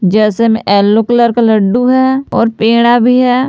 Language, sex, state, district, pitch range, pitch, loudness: Hindi, female, Jharkhand, Palamu, 220-245 Hz, 235 Hz, -10 LUFS